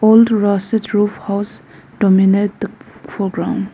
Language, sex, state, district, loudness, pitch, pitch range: English, female, Arunachal Pradesh, Lower Dibang Valley, -15 LUFS, 205 Hz, 200-215 Hz